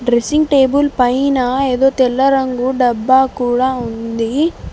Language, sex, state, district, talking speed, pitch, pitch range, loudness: Telugu, female, Telangana, Mahabubabad, 115 wpm, 260 Hz, 245-270 Hz, -14 LUFS